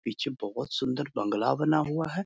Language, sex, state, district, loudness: Hindi, male, Bihar, Muzaffarpur, -29 LUFS